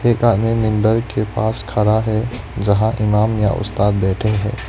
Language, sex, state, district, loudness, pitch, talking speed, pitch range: Hindi, male, Arunachal Pradesh, Lower Dibang Valley, -17 LUFS, 110 Hz, 155 wpm, 105-110 Hz